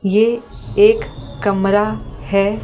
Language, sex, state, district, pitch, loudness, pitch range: Hindi, female, Delhi, New Delhi, 210 Hz, -16 LUFS, 200-235 Hz